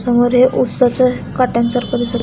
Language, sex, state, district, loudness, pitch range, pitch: Marathi, female, Maharashtra, Pune, -14 LUFS, 240-255 Hz, 245 Hz